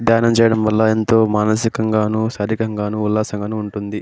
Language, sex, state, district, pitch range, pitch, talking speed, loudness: Telugu, male, Andhra Pradesh, Anantapur, 105-110 Hz, 110 Hz, 120 wpm, -17 LUFS